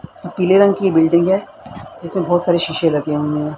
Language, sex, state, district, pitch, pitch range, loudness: Hindi, female, Haryana, Rohtak, 175 Hz, 160-185 Hz, -16 LUFS